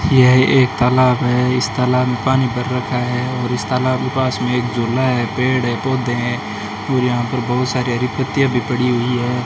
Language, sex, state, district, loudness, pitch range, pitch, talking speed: Hindi, male, Rajasthan, Bikaner, -17 LUFS, 125-130 Hz, 125 Hz, 220 wpm